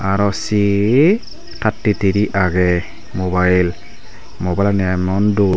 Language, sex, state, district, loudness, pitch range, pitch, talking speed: Chakma, male, Tripura, Dhalai, -16 LUFS, 90-105 Hz, 95 Hz, 110 wpm